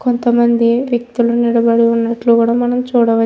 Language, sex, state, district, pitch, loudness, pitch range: Telugu, female, Andhra Pradesh, Anantapur, 235 Hz, -13 LUFS, 230-240 Hz